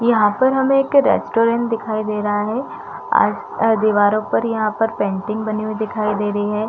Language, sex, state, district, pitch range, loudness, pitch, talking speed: Hindi, female, Chhattisgarh, Raigarh, 210-230 Hz, -18 LUFS, 215 Hz, 200 wpm